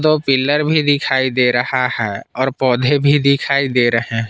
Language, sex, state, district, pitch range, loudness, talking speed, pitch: Hindi, male, Jharkhand, Palamu, 125-145 Hz, -15 LUFS, 195 wpm, 130 Hz